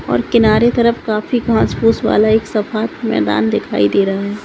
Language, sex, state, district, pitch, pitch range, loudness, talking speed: Hindi, female, Bihar, Madhepura, 215 Hz, 200-230 Hz, -15 LUFS, 175 wpm